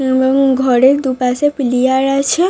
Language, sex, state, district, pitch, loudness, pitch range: Bengali, female, West Bengal, Dakshin Dinajpur, 265 Hz, -13 LUFS, 260-275 Hz